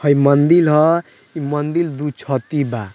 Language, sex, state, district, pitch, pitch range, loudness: Bhojpuri, male, Bihar, Muzaffarpur, 150 Hz, 140-155 Hz, -16 LUFS